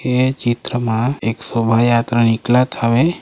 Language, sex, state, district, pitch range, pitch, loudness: Chhattisgarhi, male, Chhattisgarh, Raigarh, 115-125 Hz, 120 Hz, -16 LUFS